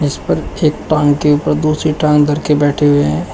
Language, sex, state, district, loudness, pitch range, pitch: Hindi, male, Uttar Pradesh, Shamli, -13 LUFS, 145-150 Hz, 150 Hz